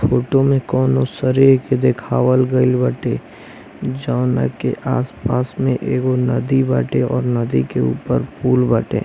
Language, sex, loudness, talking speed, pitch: Bhojpuri, male, -17 LUFS, 60 wpm, 125 Hz